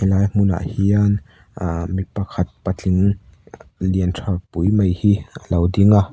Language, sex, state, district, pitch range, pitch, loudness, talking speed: Mizo, male, Mizoram, Aizawl, 90-100 Hz, 95 Hz, -19 LUFS, 155 wpm